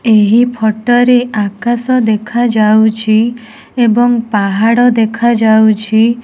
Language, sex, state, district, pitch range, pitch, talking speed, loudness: Odia, female, Odisha, Nuapada, 220-240 Hz, 225 Hz, 65 wpm, -11 LUFS